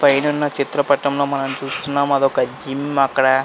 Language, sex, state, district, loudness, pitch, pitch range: Telugu, male, Andhra Pradesh, Visakhapatnam, -19 LUFS, 140 Hz, 135-140 Hz